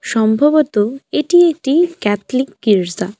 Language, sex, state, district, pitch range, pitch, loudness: Bengali, female, West Bengal, Alipurduar, 210-305 Hz, 255 Hz, -15 LUFS